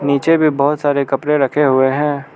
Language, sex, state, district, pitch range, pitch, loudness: Hindi, male, Arunachal Pradesh, Lower Dibang Valley, 140-150 Hz, 145 Hz, -15 LUFS